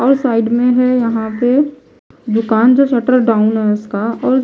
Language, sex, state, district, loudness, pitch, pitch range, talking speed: Hindi, female, Chhattisgarh, Raipur, -14 LUFS, 240 Hz, 220-255 Hz, 175 wpm